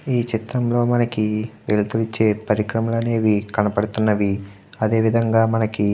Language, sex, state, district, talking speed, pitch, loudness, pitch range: Telugu, male, Andhra Pradesh, Guntur, 120 wpm, 110 Hz, -20 LUFS, 105-115 Hz